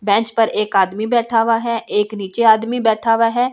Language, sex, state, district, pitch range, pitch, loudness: Hindi, female, Delhi, New Delhi, 210-230 Hz, 225 Hz, -16 LUFS